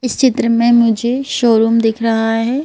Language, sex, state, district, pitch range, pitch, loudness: Hindi, female, Madhya Pradesh, Bhopal, 225-250 Hz, 230 Hz, -13 LUFS